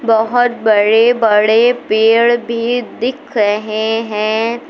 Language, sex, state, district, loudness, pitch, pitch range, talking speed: Hindi, female, Uttar Pradesh, Lucknow, -13 LUFS, 225 Hz, 215-240 Hz, 100 wpm